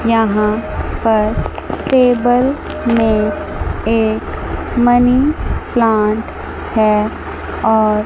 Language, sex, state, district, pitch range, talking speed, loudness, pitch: Hindi, female, Chandigarh, Chandigarh, 215-245 Hz, 65 wpm, -15 LUFS, 225 Hz